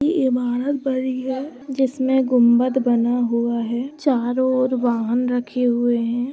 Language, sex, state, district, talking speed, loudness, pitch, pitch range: Hindi, female, Maharashtra, Pune, 135 wpm, -20 LUFS, 250 Hz, 240-260 Hz